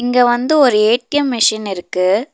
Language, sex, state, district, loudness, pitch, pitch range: Tamil, female, Tamil Nadu, Nilgiris, -14 LUFS, 240 Hz, 210-255 Hz